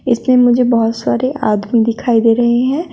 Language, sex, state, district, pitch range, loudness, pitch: Hindi, female, Uttar Pradesh, Shamli, 230-255 Hz, -13 LUFS, 240 Hz